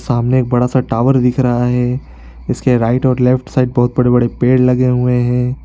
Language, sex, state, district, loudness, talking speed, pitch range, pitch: Hindi, male, Bihar, East Champaran, -14 LUFS, 225 wpm, 120-130 Hz, 125 Hz